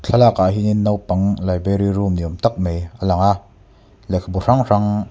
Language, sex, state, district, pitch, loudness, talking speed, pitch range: Mizo, male, Mizoram, Aizawl, 100 Hz, -18 LUFS, 190 wpm, 95-105 Hz